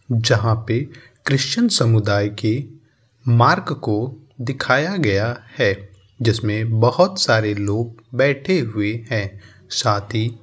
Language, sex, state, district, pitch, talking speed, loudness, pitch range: Bhojpuri, male, Uttar Pradesh, Gorakhpur, 115 Hz, 115 wpm, -19 LUFS, 105-135 Hz